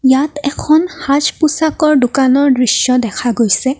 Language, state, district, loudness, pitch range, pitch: Assamese, Assam, Kamrup Metropolitan, -13 LUFS, 250-305 Hz, 275 Hz